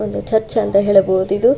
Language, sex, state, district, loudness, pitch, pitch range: Kannada, female, Karnataka, Shimoga, -15 LUFS, 205 Hz, 195-220 Hz